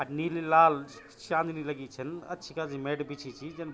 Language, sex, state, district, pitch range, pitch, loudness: Garhwali, male, Uttarakhand, Tehri Garhwal, 140-165 Hz, 155 Hz, -30 LUFS